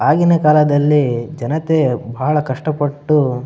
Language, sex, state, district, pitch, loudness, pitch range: Kannada, male, Karnataka, Bellary, 150 Hz, -16 LUFS, 130-155 Hz